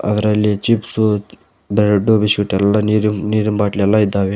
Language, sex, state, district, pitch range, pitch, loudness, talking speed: Kannada, male, Karnataka, Koppal, 100-105 Hz, 105 Hz, -16 LUFS, 135 wpm